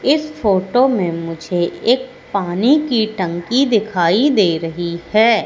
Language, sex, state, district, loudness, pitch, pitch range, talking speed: Hindi, female, Madhya Pradesh, Katni, -17 LUFS, 205 Hz, 175-255 Hz, 130 wpm